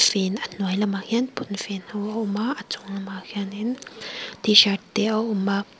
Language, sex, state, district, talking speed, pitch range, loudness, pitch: Mizo, female, Mizoram, Aizawl, 195 wpm, 195-220 Hz, -24 LUFS, 205 Hz